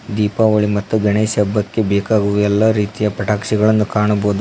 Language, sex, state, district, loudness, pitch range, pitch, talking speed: Kannada, male, Karnataka, Koppal, -16 LUFS, 105-110 Hz, 105 Hz, 110 wpm